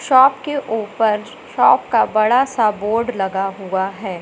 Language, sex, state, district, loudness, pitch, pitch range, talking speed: Hindi, male, Madhya Pradesh, Katni, -17 LUFS, 215 Hz, 195-245 Hz, 155 wpm